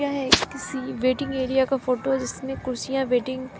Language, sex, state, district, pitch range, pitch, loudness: Hindi, female, Uttar Pradesh, Lalitpur, 255-270 Hz, 265 Hz, -24 LUFS